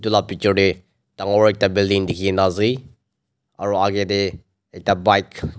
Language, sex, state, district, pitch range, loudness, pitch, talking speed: Nagamese, male, Nagaland, Dimapur, 95-100 Hz, -19 LUFS, 100 Hz, 170 wpm